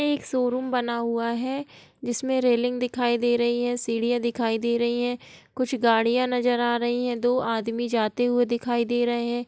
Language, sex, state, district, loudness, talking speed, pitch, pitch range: Hindi, female, Bihar, Gopalganj, -24 LUFS, 195 wpm, 240 Hz, 235-245 Hz